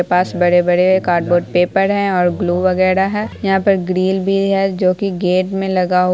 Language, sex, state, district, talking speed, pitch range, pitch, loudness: Hindi, female, Bihar, Saharsa, 205 wpm, 180-195 Hz, 185 Hz, -15 LUFS